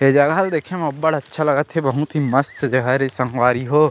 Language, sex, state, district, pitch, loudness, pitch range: Chhattisgarhi, male, Chhattisgarh, Sarguja, 145 Hz, -19 LUFS, 135-155 Hz